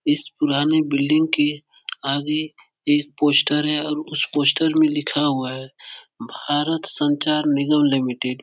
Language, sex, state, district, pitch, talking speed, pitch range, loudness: Hindi, male, Bihar, Supaul, 150 Hz, 140 wpm, 140-150 Hz, -20 LUFS